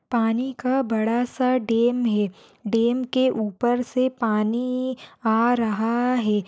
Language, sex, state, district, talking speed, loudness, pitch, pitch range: Hindi, female, Uttar Pradesh, Deoria, 130 wpm, -23 LUFS, 240 Hz, 225-255 Hz